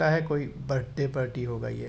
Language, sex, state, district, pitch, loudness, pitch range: Hindi, male, Uttar Pradesh, Hamirpur, 135 Hz, -30 LUFS, 125-145 Hz